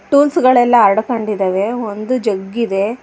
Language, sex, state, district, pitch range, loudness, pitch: Kannada, female, Karnataka, Bangalore, 205-245 Hz, -14 LUFS, 225 Hz